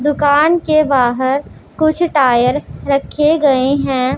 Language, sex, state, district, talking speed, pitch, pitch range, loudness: Hindi, female, Punjab, Pathankot, 115 wpm, 285 Hz, 260-310 Hz, -14 LUFS